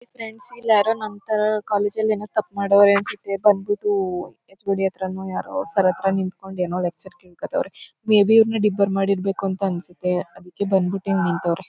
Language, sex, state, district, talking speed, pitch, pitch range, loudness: Kannada, female, Karnataka, Mysore, 160 wpm, 195 Hz, 185-210 Hz, -21 LUFS